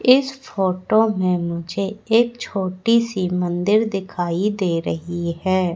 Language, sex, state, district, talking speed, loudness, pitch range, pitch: Hindi, female, Madhya Pradesh, Katni, 125 wpm, -20 LUFS, 175-220 Hz, 190 Hz